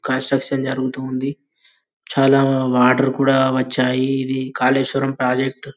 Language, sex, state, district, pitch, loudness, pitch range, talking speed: Telugu, male, Telangana, Karimnagar, 130 Hz, -18 LUFS, 130-135 Hz, 105 wpm